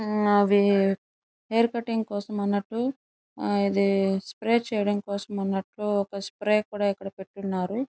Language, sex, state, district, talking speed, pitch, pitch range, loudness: Telugu, female, Andhra Pradesh, Chittoor, 105 wpm, 205 Hz, 195-215 Hz, -26 LUFS